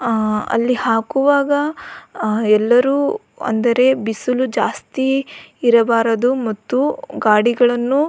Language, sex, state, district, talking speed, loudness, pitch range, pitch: Kannada, female, Karnataka, Belgaum, 80 wpm, -17 LUFS, 225-270 Hz, 245 Hz